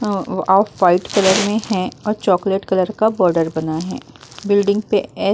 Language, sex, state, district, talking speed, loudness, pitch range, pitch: Hindi, female, Uttar Pradesh, Muzaffarnagar, 200 wpm, -17 LUFS, 185-205 Hz, 195 Hz